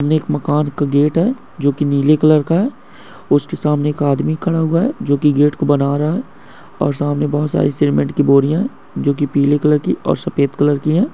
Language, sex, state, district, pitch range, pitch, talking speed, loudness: Hindi, male, West Bengal, North 24 Parganas, 145-160 Hz, 150 Hz, 220 wpm, -16 LUFS